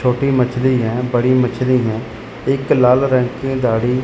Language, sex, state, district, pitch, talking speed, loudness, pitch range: Hindi, male, Chandigarh, Chandigarh, 125 Hz, 165 wpm, -16 LUFS, 120-130 Hz